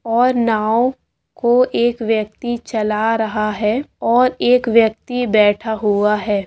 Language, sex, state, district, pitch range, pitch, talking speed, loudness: Hindi, female, Andhra Pradesh, Chittoor, 215-240 Hz, 225 Hz, 130 wpm, -17 LUFS